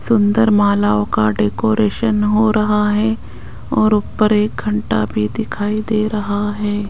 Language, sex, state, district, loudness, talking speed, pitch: Hindi, female, Rajasthan, Jaipur, -16 LUFS, 140 wpm, 210 Hz